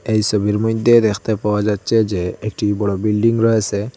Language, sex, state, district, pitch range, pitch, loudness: Bengali, male, Assam, Hailakandi, 105-110 Hz, 105 Hz, -17 LUFS